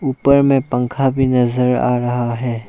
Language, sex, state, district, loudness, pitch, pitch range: Hindi, male, Arunachal Pradesh, Lower Dibang Valley, -16 LUFS, 125 Hz, 120-135 Hz